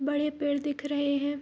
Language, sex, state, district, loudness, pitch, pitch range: Hindi, female, Bihar, Araria, -29 LUFS, 290 Hz, 285-290 Hz